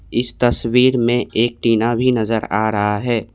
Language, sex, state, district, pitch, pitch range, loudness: Hindi, male, Assam, Kamrup Metropolitan, 115 Hz, 110-120 Hz, -17 LUFS